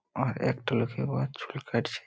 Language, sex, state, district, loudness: Bengali, male, West Bengal, Malda, -31 LUFS